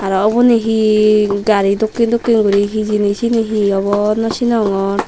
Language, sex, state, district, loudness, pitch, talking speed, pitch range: Chakma, female, Tripura, Dhalai, -14 LUFS, 215 Hz, 165 wpm, 205-225 Hz